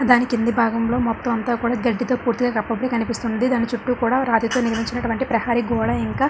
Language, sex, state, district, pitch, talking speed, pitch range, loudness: Telugu, female, Andhra Pradesh, Srikakulam, 235 Hz, 210 wpm, 230-245 Hz, -21 LUFS